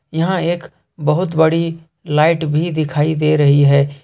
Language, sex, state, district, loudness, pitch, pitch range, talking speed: Hindi, male, Jharkhand, Ranchi, -16 LUFS, 160 Hz, 150-165 Hz, 150 wpm